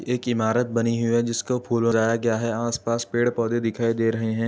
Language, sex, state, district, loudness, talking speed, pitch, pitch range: Hindi, male, Uttar Pradesh, Etah, -23 LUFS, 240 wpm, 115 Hz, 115-120 Hz